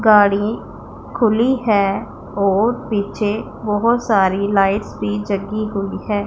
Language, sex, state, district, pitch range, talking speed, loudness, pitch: Hindi, female, Punjab, Pathankot, 200-220 Hz, 115 wpm, -18 LUFS, 205 Hz